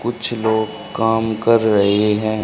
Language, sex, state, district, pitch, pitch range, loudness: Hindi, male, Haryana, Rohtak, 110 Hz, 110-115 Hz, -17 LUFS